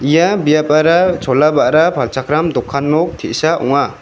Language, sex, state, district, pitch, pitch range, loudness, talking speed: Garo, male, Meghalaya, West Garo Hills, 155 Hz, 140-165 Hz, -13 LUFS, 135 wpm